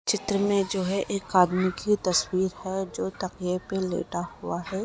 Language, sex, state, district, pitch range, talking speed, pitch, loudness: Hindi, female, Chhattisgarh, Kabirdham, 185-195 Hz, 185 wpm, 190 Hz, -27 LUFS